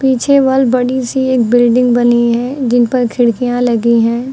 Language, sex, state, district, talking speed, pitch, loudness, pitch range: Hindi, female, Uttar Pradesh, Lucknow, 180 wpm, 245 Hz, -12 LUFS, 240-260 Hz